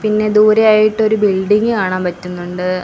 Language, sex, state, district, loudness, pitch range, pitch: Malayalam, female, Kerala, Kollam, -13 LUFS, 185-215 Hz, 210 Hz